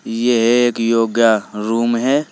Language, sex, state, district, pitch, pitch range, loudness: Hindi, male, Uttar Pradesh, Saharanpur, 115 Hz, 115-120 Hz, -16 LUFS